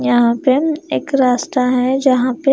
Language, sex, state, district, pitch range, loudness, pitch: Hindi, female, Himachal Pradesh, Shimla, 250-275 Hz, -15 LUFS, 260 Hz